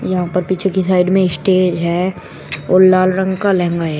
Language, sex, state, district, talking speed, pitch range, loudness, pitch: Hindi, male, Uttar Pradesh, Shamli, 210 wpm, 180-190 Hz, -14 LUFS, 185 Hz